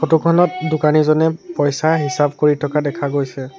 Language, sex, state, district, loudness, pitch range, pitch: Assamese, male, Assam, Sonitpur, -17 LUFS, 145-160 Hz, 150 Hz